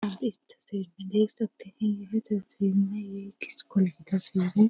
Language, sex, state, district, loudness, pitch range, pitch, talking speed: Hindi, female, Uttar Pradesh, Jyotiba Phule Nagar, -29 LUFS, 195-215 Hz, 200 Hz, 190 wpm